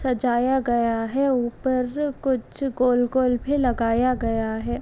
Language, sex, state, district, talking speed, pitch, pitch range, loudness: Hindi, female, Maharashtra, Nagpur, 125 wpm, 250 Hz, 235-265 Hz, -23 LUFS